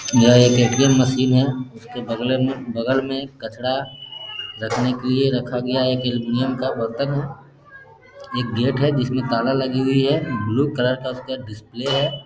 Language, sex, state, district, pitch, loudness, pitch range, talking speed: Hindi, male, Bihar, Gaya, 130 Hz, -20 LUFS, 125-135 Hz, 170 wpm